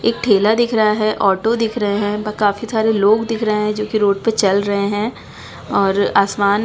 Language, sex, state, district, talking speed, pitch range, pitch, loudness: Hindi, female, Bihar, Gaya, 235 wpm, 200-220 Hz, 210 Hz, -16 LUFS